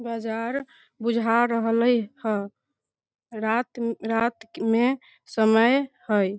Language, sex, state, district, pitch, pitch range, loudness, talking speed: Maithili, female, Bihar, Samastipur, 230 Hz, 225-240 Hz, -24 LUFS, 105 wpm